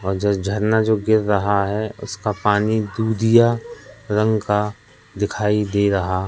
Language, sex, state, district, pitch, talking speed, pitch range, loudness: Hindi, male, Madhya Pradesh, Katni, 105 Hz, 145 wpm, 105-110 Hz, -19 LUFS